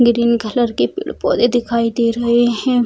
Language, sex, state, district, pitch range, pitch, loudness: Hindi, female, Bihar, Bhagalpur, 235-240 Hz, 235 Hz, -16 LUFS